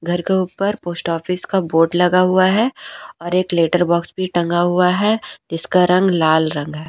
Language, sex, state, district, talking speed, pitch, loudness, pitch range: Hindi, female, Jharkhand, Deoghar, 200 wpm, 175 Hz, -17 LUFS, 170-185 Hz